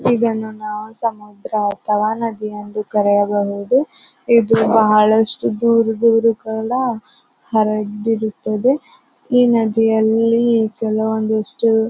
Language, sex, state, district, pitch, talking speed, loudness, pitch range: Kannada, female, Karnataka, Bijapur, 220 Hz, 80 wpm, -17 LUFS, 215-230 Hz